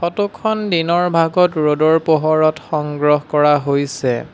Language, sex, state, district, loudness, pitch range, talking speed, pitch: Assamese, male, Assam, Sonitpur, -16 LUFS, 150-170 Hz, 125 wpm, 155 Hz